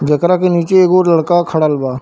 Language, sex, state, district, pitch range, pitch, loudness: Hindi, male, Bihar, Darbhanga, 155-180 Hz, 170 Hz, -12 LUFS